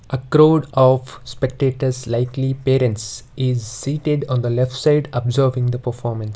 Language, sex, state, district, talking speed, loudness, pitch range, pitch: English, male, Karnataka, Bangalore, 150 wpm, -19 LUFS, 125-135 Hz, 130 Hz